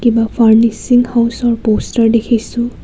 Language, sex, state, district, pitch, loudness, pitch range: Assamese, female, Assam, Kamrup Metropolitan, 235 Hz, -13 LUFS, 225-240 Hz